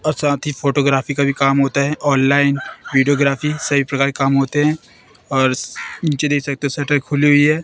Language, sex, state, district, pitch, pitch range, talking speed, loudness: Hindi, female, Madhya Pradesh, Katni, 140 Hz, 140-145 Hz, 175 wpm, -17 LUFS